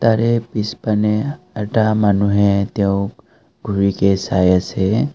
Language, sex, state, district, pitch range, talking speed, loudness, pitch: Assamese, male, Assam, Kamrup Metropolitan, 100-115 Hz, 95 wpm, -17 LUFS, 105 Hz